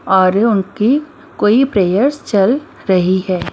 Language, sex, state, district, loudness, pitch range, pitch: Hindi, female, Maharashtra, Mumbai Suburban, -14 LUFS, 190-265 Hz, 205 Hz